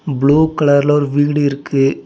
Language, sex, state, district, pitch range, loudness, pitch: Tamil, male, Tamil Nadu, Nilgiris, 140-145 Hz, -14 LUFS, 145 Hz